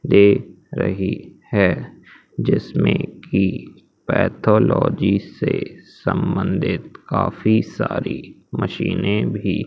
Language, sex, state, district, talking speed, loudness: Hindi, male, Madhya Pradesh, Umaria, 75 wpm, -20 LUFS